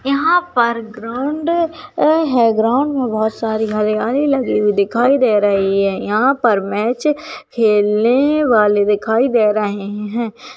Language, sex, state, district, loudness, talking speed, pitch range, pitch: Hindi, female, Chhattisgarh, Balrampur, -16 LUFS, 140 wpm, 210-275 Hz, 230 Hz